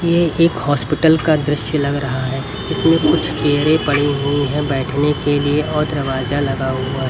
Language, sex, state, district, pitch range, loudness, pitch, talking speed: Hindi, male, Haryana, Rohtak, 135-150 Hz, -17 LUFS, 145 Hz, 195 wpm